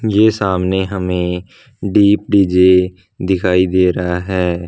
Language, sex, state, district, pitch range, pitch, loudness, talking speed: Hindi, male, Punjab, Fazilka, 90-100 Hz, 95 Hz, -14 LUFS, 105 wpm